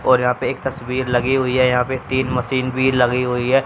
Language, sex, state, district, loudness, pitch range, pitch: Hindi, female, Haryana, Jhajjar, -18 LUFS, 125-130 Hz, 130 Hz